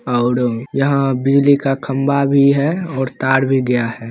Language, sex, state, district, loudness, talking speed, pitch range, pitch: Hindi, male, Bihar, Begusarai, -16 LUFS, 175 wpm, 125-140 Hz, 135 Hz